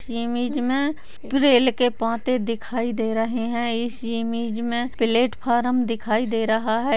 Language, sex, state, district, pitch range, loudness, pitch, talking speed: Hindi, male, Rajasthan, Nagaur, 230-245 Hz, -23 LUFS, 235 Hz, 155 wpm